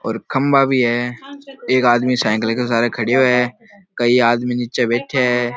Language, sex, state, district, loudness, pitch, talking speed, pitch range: Marwari, male, Rajasthan, Nagaur, -17 LUFS, 125 Hz, 170 wpm, 120-130 Hz